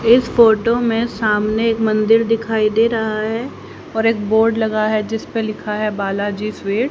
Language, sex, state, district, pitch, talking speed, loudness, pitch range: Hindi, female, Haryana, Rohtak, 220 Hz, 190 wpm, -17 LUFS, 215-230 Hz